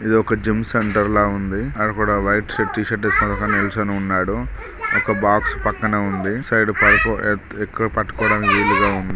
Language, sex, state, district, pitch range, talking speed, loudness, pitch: Telugu, male, Telangana, Karimnagar, 100-110 Hz, 170 wpm, -18 LUFS, 105 Hz